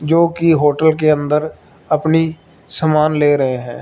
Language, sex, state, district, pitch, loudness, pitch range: Hindi, male, Punjab, Fazilka, 155 Hz, -15 LUFS, 150-160 Hz